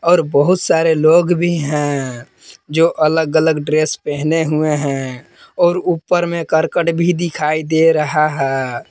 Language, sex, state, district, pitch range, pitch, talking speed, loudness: Hindi, male, Jharkhand, Palamu, 150-170 Hz, 160 Hz, 150 wpm, -15 LUFS